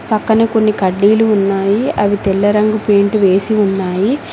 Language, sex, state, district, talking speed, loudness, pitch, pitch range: Telugu, female, Telangana, Mahabubabad, 140 wpm, -13 LUFS, 205 Hz, 195-215 Hz